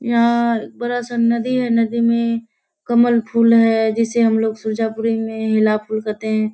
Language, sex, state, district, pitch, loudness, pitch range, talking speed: Hindi, female, Bihar, Kishanganj, 230 Hz, -17 LUFS, 220-235 Hz, 175 wpm